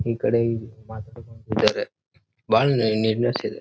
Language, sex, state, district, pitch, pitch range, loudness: Kannada, male, Karnataka, Dharwad, 115 Hz, 110-120 Hz, -22 LUFS